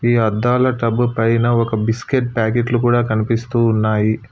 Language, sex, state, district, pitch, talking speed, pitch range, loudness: Telugu, male, Telangana, Hyderabad, 115 Hz, 140 wpm, 110-120 Hz, -17 LUFS